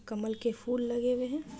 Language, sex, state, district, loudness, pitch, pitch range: Hindi, female, Bihar, Muzaffarpur, -33 LUFS, 240 Hz, 225-250 Hz